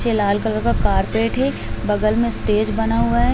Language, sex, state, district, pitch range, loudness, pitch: Hindi, female, Uttar Pradesh, Hamirpur, 215-235 Hz, -19 LUFS, 225 Hz